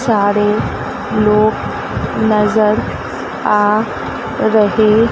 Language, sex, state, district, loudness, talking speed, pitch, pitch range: Hindi, female, Madhya Pradesh, Dhar, -15 LUFS, 60 wpm, 215 Hz, 210-220 Hz